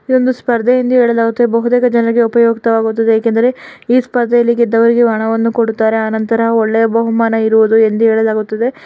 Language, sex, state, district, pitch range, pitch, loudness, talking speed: Kannada, female, Karnataka, Dakshina Kannada, 225-240 Hz, 230 Hz, -12 LUFS, 135 wpm